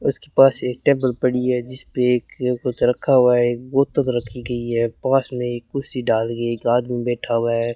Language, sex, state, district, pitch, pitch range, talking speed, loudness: Hindi, male, Rajasthan, Bikaner, 125 Hz, 120-130 Hz, 215 wpm, -20 LUFS